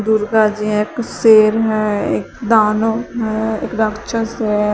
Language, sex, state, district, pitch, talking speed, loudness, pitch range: Hindi, female, Uttar Pradesh, Shamli, 220 Hz, 150 wpm, -16 LUFS, 215-225 Hz